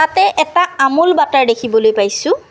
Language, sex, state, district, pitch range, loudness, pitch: Assamese, female, Assam, Kamrup Metropolitan, 225-345 Hz, -13 LUFS, 280 Hz